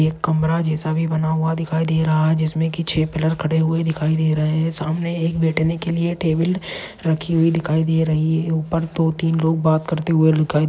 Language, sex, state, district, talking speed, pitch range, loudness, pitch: Hindi, male, Maharashtra, Dhule, 225 wpm, 155-165 Hz, -19 LUFS, 160 Hz